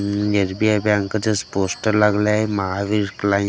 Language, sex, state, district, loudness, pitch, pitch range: Marathi, male, Maharashtra, Gondia, -19 LUFS, 105 Hz, 100-105 Hz